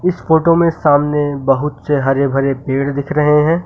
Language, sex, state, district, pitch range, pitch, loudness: Hindi, male, Uttar Pradesh, Lucknow, 140-160 Hz, 145 Hz, -14 LUFS